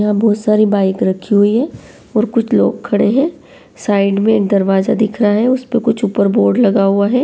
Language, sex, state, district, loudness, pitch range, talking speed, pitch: Hindi, female, Uttar Pradesh, Varanasi, -14 LUFS, 200-235 Hz, 225 wpm, 215 Hz